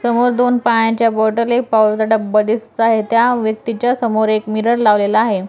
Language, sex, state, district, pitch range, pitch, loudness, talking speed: Marathi, female, Maharashtra, Dhule, 215-235 Hz, 225 Hz, -15 LUFS, 185 wpm